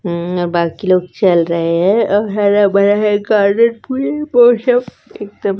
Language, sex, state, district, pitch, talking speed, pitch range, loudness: Hindi, female, Chhattisgarh, Raipur, 205 Hz, 120 wpm, 180-225 Hz, -14 LUFS